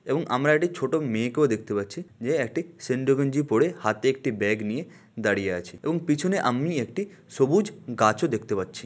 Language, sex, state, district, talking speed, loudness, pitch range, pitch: Bengali, male, West Bengal, Malda, 185 wpm, -25 LUFS, 110-165 Hz, 135 Hz